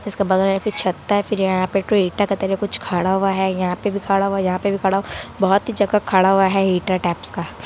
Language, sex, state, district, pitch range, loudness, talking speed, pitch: Hindi, female, Bihar, Kishanganj, 190-200 Hz, -19 LUFS, 290 wpm, 195 Hz